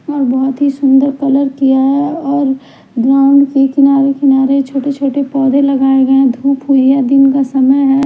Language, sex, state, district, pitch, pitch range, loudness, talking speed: Hindi, female, Bihar, Patna, 275 Hz, 270-280 Hz, -11 LUFS, 180 wpm